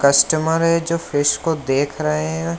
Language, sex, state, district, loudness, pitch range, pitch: Hindi, male, Bihar, Lakhisarai, -18 LUFS, 135-165 Hz, 145 Hz